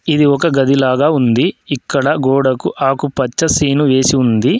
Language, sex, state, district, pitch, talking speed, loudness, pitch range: Telugu, male, Telangana, Adilabad, 135 Hz, 130 wpm, -13 LUFS, 130-145 Hz